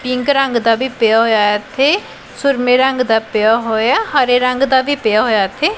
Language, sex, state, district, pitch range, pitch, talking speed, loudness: Punjabi, female, Punjab, Pathankot, 220-265 Hz, 250 Hz, 210 wpm, -14 LUFS